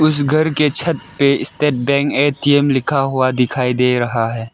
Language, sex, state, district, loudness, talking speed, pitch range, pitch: Hindi, male, Arunachal Pradesh, Lower Dibang Valley, -16 LUFS, 185 wpm, 125-150 Hz, 140 Hz